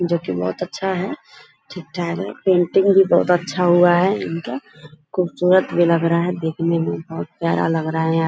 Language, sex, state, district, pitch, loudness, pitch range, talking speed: Hindi, female, Bihar, Purnia, 170 Hz, -19 LUFS, 160-180 Hz, 195 wpm